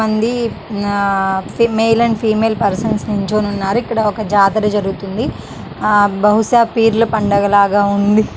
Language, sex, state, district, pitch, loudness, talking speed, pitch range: Telugu, female, Andhra Pradesh, Chittoor, 210 Hz, -15 LUFS, 120 wpm, 200-225 Hz